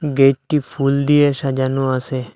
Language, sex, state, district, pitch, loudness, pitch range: Bengali, male, Assam, Hailakandi, 135 Hz, -17 LUFS, 130-145 Hz